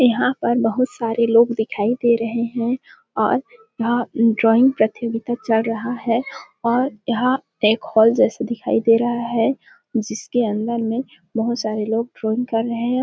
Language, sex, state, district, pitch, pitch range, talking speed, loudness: Hindi, female, Chhattisgarh, Balrampur, 235 Hz, 225-245 Hz, 165 wpm, -20 LUFS